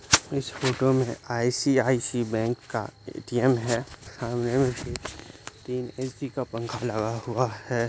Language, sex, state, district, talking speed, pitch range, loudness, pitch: Maithili, male, Bihar, Supaul, 120 wpm, 115-130 Hz, -27 LUFS, 120 Hz